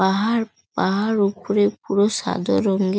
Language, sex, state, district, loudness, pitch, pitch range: Bengali, female, West Bengal, North 24 Parganas, -21 LUFS, 200 Hz, 195-215 Hz